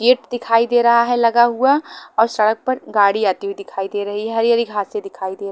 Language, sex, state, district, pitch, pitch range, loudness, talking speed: Hindi, female, Haryana, Charkhi Dadri, 225 Hz, 200-240 Hz, -17 LUFS, 260 wpm